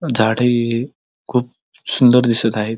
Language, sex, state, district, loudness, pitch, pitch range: Marathi, male, Maharashtra, Pune, -15 LUFS, 120 Hz, 115-125 Hz